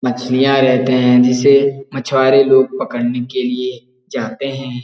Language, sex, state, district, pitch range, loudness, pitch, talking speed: Hindi, male, Bihar, Jahanabad, 125-135 Hz, -14 LUFS, 130 Hz, 135 wpm